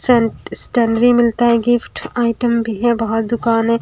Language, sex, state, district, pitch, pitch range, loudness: Hindi, female, Himachal Pradesh, Shimla, 235 Hz, 230-240 Hz, -15 LUFS